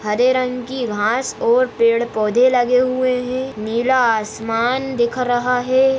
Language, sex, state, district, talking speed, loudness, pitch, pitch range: Hindi, female, Maharashtra, Nagpur, 150 wpm, -18 LUFS, 250 Hz, 230-255 Hz